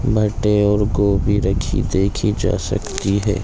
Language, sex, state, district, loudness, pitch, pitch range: Hindi, male, Chhattisgarh, Bilaspur, -18 LUFS, 105 Hz, 100-105 Hz